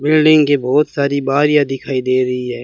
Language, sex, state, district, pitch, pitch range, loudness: Hindi, male, Rajasthan, Bikaner, 140 Hz, 130-150 Hz, -14 LUFS